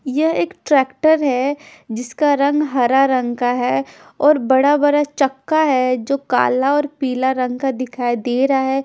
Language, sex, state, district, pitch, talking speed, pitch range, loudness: Hindi, female, Punjab, Fazilka, 270 Hz, 170 wpm, 255-290 Hz, -17 LUFS